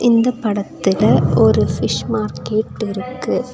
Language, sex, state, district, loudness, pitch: Tamil, female, Tamil Nadu, Nilgiris, -17 LUFS, 195 Hz